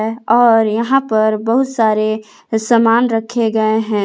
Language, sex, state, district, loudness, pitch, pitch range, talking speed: Hindi, female, Jharkhand, Palamu, -14 LUFS, 225 Hz, 215-235 Hz, 135 wpm